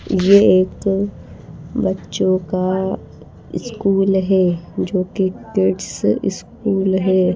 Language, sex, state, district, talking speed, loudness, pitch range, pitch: Hindi, female, Madhya Pradesh, Bhopal, 90 wpm, -18 LUFS, 185-195 Hz, 190 Hz